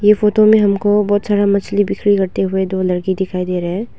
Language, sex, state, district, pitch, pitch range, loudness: Hindi, female, Arunachal Pradesh, Longding, 200 Hz, 190-205 Hz, -15 LUFS